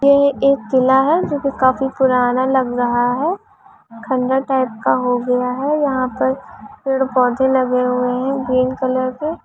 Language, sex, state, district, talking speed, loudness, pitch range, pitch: Hindi, female, Bihar, Sitamarhi, 160 wpm, -17 LUFS, 250-275 Hz, 260 Hz